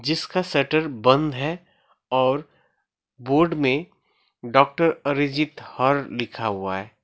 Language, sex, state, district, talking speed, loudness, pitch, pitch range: Hindi, male, West Bengal, Alipurduar, 110 wpm, -22 LUFS, 140 Hz, 130-160 Hz